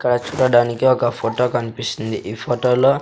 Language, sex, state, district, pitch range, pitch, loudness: Telugu, male, Andhra Pradesh, Sri Satya Sai, 115-130 Hz, 120 Hz, -18 LUFS